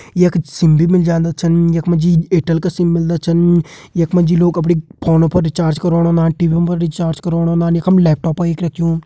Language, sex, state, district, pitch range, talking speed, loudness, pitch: Hindi, male, Uttarakhand, Uttarkashi, 165-175 Hz, 220 wpm, -14 LUFS, 170 Hz